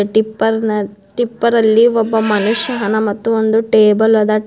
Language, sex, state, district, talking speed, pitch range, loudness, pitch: Kannada, female, Karnataka, Bidar, 120 wpm, 215-225 Hz, -14 LUFS, 220 Hz